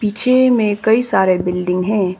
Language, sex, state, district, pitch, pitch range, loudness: Hindi, female, Arunachal Pradesh, Papum Pare, 205 Hz, 185-225 Hz, -15 LUFS